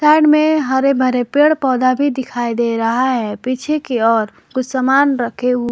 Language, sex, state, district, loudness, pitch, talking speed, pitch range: Hindi, female, Jharkhand, Garhwa, -15 LUFS, 255 Hz, 190 wpm, 240-280 Hz